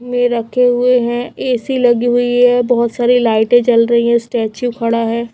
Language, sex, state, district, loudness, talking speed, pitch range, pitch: Hindi, female, Chhattisgarh, Raipur, -13 LUFS, 190 wpm, 235-245 Hz, 240 Hz